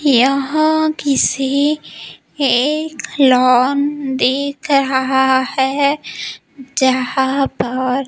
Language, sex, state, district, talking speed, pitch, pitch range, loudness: Hindi, female, Maharashtra, Gondia, 65 wpm, 275 Hz, 260-285 Hz, -15 LUFS